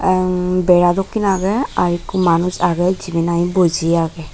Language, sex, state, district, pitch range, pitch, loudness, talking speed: Chakma, female, Tripura, Dhalai, 170-185 Hz, 180 Hz, -16 LUFS, 150 wpm